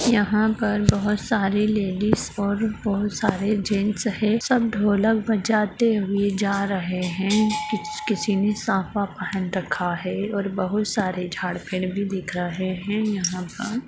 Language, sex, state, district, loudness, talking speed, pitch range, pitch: Magahi, female, Bihar, Gaya, -23 LUFS, 155 wpm, 190-215 Hz, 205 Hz